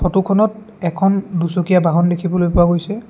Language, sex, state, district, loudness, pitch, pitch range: Assamese, male, Assam, Sonitpur, -16 LUFS, 180 Hz, 175-195 Hz